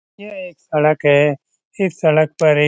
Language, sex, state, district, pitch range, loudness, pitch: Hindi, male, Bihar, Lakhisarai, 150-185 Hz, -16 LUFS, 155 Hz